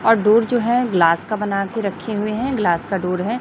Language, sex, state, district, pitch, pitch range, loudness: Hindi, female, Chhattisgarh, Raipur, 210 Hz, 190-230 Hz, -19 LUFS